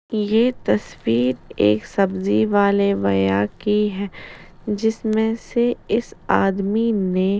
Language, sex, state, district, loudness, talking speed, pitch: Hindi, female, Bihar, Patna, -20 LUFS, 115 wpm, 195 Hz